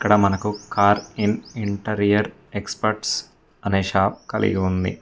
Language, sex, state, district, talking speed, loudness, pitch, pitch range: Telugu, male, Telangana, Mahabubabad, 120 wpm, -22 LUFS, 100 Hz, 100-105 Hz